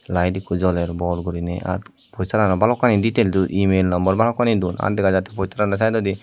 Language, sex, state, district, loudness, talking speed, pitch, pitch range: Chakma, male, Tripura, Dhalai, -20 LUFS, 185 wpm, 95 Hz, 90-105 Hz